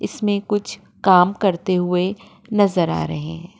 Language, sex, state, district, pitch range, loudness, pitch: Hindi, female, Uttar Pradesh, Jyotiba Phule Nagar, 180-205 Hz, -19 LUFS, 190 Hz